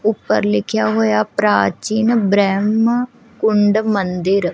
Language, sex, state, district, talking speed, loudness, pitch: Punjabi, female, Punjab, Kapurthala, 90 wpm, -16 LUFS, 200 Hz